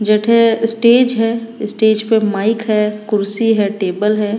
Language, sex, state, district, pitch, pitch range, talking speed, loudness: Rajasthani, female, Rajasthan, Nagaur, 215 Hz, 210-225 Hz, 150 wpm, -14 LUFS